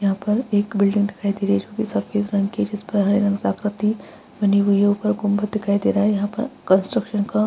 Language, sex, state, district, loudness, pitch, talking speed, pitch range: Hindi, female, Bihar, Araria, -20 LUFS, 205 Hz, 265 wpm, 200-210 Hz